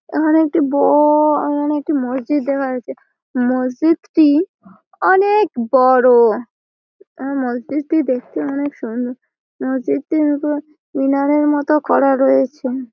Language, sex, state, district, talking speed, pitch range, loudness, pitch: Bengali, female, West Bengal, Malda, 100 wpm, 255-305 Hz, -16 LUFS, 285 Hz